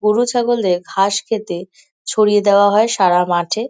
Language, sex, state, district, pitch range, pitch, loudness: Bengali, female, West Bengal, North 24 Parganas, 180-220 Hz, 205 Hz, -15 LUFS